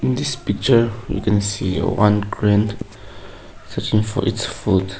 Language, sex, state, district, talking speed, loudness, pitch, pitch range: English, male, Nagaland, Kohima, 155 wpm, -19 LUFS, 105 Hz, 95-110 Hz